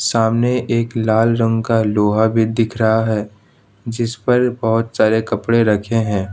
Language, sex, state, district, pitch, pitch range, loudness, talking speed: Hindi, male, Jharkhand, Ranchi, 115 Hz, 110-115 Hz, -16 LUFS, 160 wpm